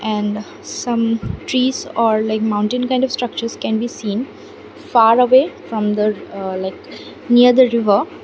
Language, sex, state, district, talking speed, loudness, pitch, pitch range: English, female, Assam, Kamrup Metropolitan, 145 wpm, -17 LUFS, 230 Hz, 210-250 Hz